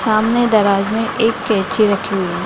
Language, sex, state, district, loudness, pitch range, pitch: Hindi, female, Bihar, Gaya, -16 LUFS, 195-225 Hz, 215 Hz